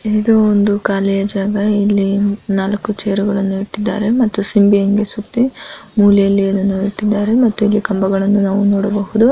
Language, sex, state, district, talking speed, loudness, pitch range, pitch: Kannada, female, Karnataka, Mysore, 130 wpm, -15 LUFS, 195-210 Hz, 205 Hz